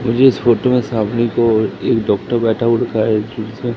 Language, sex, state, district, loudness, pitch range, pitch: Hindi, male, Madhya Pradesh, Katni, -16 LUFS, 110-120 Hz, 115 Hz